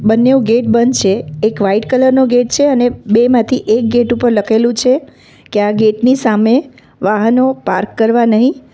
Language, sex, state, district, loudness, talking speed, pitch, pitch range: Gujarati, female, Gujarat, Valsad, -12 LUFS, 185 wpm, 235 Hz, 220-255 Hz